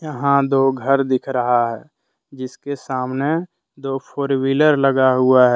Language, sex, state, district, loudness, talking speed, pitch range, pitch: Hindi, male, Jharkhand, Deoghar, -18 LUFS, 160 wpm, 130-140 Hz, 135 Hz